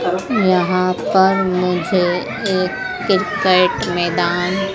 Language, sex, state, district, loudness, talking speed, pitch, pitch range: Hindi, female, Madhya Pradesh, Dhar, -17 LUFS, 75 wpm, 185 Hz, 180-195 Hz